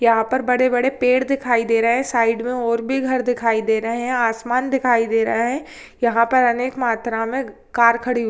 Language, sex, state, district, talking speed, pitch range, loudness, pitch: Hindi, female, Rajasthan, Churu, 225 wpm, 230-255 Hz, -19 LUFS, 240 Hz